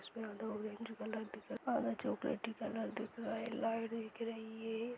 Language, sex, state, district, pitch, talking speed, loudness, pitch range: Hindi, male, Bihar, Madhepura, 225 Hz, 180 wpm, -42 LUFS, 220-230 Hz